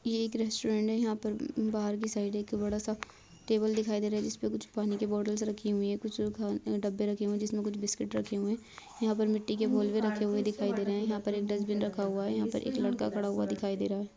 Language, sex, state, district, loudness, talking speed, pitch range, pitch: Hindi, female, Chhattisgarh, Bastar, -33 LUFS, 275 wpm, 205-215 Hz, 210 Hz